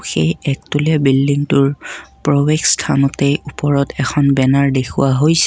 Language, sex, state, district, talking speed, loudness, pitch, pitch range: Assamese, male, Assam, Kamrup Metropolitan, 100 wpm, -15 LUFS, 140 Hz, 135-145 Hz